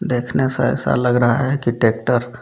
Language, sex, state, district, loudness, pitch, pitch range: Hindi, male, Jharkhand, Garhwa, -18 LUFS, 125 Hz, 120-130 Hz